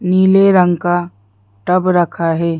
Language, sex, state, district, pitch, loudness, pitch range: Hindi, female, Madhya Pradesh, Bhopal, 175 Hz, -13 LUFS, 165-185 Hz